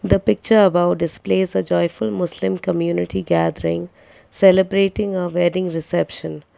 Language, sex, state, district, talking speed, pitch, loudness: English, female, Karnataka, Bangalore, 130 wpm, 150 Hz, -19 LUFS